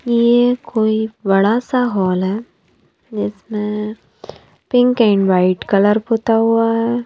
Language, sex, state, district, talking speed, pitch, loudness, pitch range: Hindi, female, Bihar, Katihar, 120 wpm, 220 Hz, -16 LUFS, 205-235 Hz